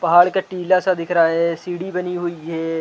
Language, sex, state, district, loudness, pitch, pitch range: Hindi, male, Chhattisgarh, Rajnandgaon, -19 LUFS, 175 Hz, 170-180 Hz